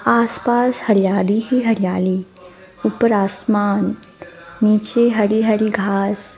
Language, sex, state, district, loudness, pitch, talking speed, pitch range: Hindi, female, Punjab, Fazilka, -17 LUFS, 205 Hz, 105 wpm, 190-225 Hz